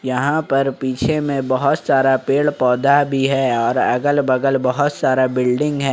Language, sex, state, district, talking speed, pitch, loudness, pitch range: Hindi, male, Jharkhand, Ranchi, 170 wpm, 135 Hz, -17 LUFS, 130-145 Hz